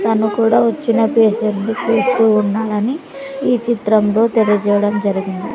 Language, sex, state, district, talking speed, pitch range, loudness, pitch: Telugu, female, Andhra Pradesh, Sri Satya Sai, 110 wpm, 210-235 Hz, -15 LUFS, 220 Hz